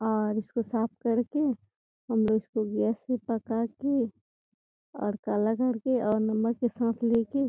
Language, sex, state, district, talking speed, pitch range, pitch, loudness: Hindi, female, Bihar, Gopalganj, 170 wpm, 220-245 Hz, 230 Hz, -29 LUFS